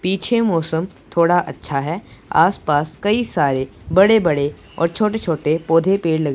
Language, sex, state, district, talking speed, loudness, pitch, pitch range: Hindi, male, Punjab, Pathankot, 150 wpm, -18 LUFS, 165 Hz, 155-195 Hz